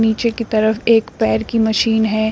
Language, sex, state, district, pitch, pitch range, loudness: Hindi, female, Uttar Pradesh, Shamli, 220 Hz, 220-230 Hz, -16 LUFS